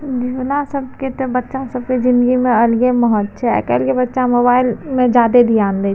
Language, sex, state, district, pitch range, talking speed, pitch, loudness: Maithili, female, Bihar, Madhepura, 235-255 Hz, 230 wpm, 250 Hz, -15 LUFS